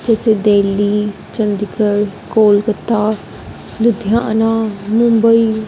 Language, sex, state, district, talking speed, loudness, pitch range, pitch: Hindi, female, Punjab, Fazilka, 65 wpm, -14 LUFS, 205-225 Hz, 215 Hz